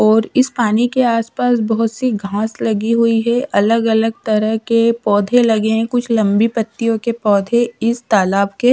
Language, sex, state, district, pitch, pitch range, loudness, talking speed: Hindi, female, Chhattisgarh, Raipur, 225 Hz, 215-235 Hz, -15 LUFS, 185 wpm